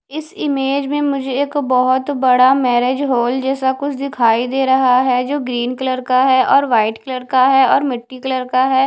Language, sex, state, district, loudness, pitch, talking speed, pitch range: Hindi, female, Odisha, Khordha, -15 LUFS, 260 Hz, 205 wpm, 255-275 Hz